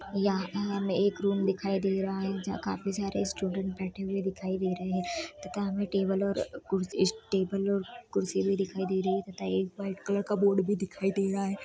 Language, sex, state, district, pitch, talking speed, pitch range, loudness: Hindi, female, Bihar, Saharsa, 195 Hz, 215 wpm, 190-200 Hz, -31 LUFS